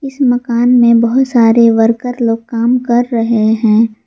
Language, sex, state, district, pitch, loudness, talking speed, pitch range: Hindi, female, Jharkhand, Garhwa, 235 Hz, -11 LUFS, 165 wpm, 230-245 Hz